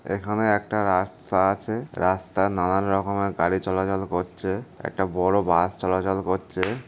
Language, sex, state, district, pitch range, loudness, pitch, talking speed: Bengali, male, West Bengal, Paschim Medinipur, 95-100 Hz, -24 LUFS, 95 Hz, 140 wpm